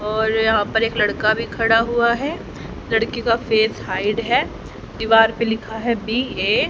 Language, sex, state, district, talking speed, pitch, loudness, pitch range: Hindi, female, Haryana, Rohtak, 190 wpm, 225 Hz, -19 LUFS, 220-230 Hz